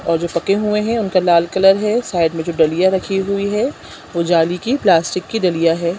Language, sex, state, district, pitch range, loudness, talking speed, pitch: Hindi, female, Chhattisgarh, Sukma, 170-200 Hz, -16 LUFS, 230 wpm, 185 Hz